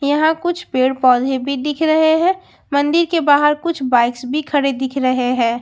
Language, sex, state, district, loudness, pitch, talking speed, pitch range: Hindi, female, Bihar, Katihar, -16 LUFS, 285 Hz, 190 wpm, 255-315 Hz